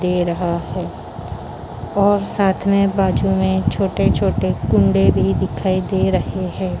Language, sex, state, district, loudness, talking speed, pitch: Hindi, female, Maharashtra, Mumbai Suburban, -18 LUFS, 130 wpm, 175 Hz